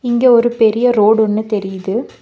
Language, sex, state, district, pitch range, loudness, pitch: Tamil, female, Tamil Nadu, Nilgiris, 210-240 Hz, -13 LUFS, 220 Hz